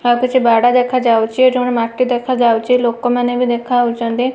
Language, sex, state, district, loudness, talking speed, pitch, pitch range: Odia, female, Odisha, Malkangiri, -14 LUFS, 150 wpm, 245 Hz, 235-250 Hz